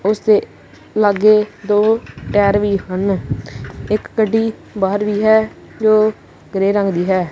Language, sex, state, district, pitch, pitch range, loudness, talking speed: Punjabi, female, Punjab, Kapurthala, 205 Hz, 195-215 Hz, -16 LUFS, 130 wpm